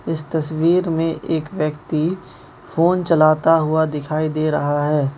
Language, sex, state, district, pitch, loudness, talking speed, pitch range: Hindi, male, Manipur, Imphal West, 155 Hz, -19 LUFS, 140 wpm, 150-165 Hz